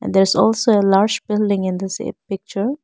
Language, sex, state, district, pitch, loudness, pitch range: English, female, Arunachal Pradesh, Lower Dibang Valley, 200 Hz, -18 LUFS, 195-220 Hz